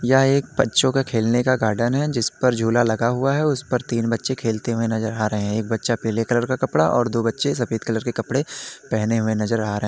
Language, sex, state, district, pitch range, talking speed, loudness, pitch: Hindi, male, Uttar Pradesh, Lalitpur, 110-130 Hz, 245 wpm, -21 LUFS, 115 Hz